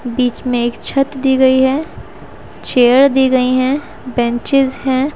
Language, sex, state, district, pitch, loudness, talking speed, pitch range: Hindi, female, Haryana, Rohtak, 260 Hz, -14 LUFS, 150 wpm, 250-275 Hz